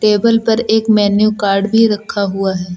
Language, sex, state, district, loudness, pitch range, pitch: Hindi, male, Uttar Pradesh, Lucknow, -13 LUFS, 200-220 Hz, 210 Hz